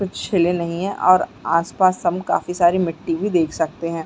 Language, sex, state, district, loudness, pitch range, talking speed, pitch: Hindi, female, Chhattisgarh, Sarguja, -19 LUFS, 170-185 Hz, 235 wpm, 175 Hz